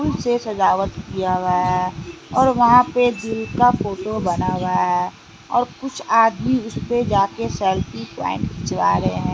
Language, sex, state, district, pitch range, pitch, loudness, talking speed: Hindi, female, Bihar, West Champaran, 180-240 Hz, 200 Hz, -19 LUFS, 175 wpm